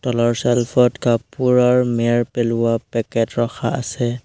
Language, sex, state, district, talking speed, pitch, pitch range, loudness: Assamese, male, Assam, Hailakandi, 125 wpm, 120 Hz, 115-125 Hz, -18 LUFS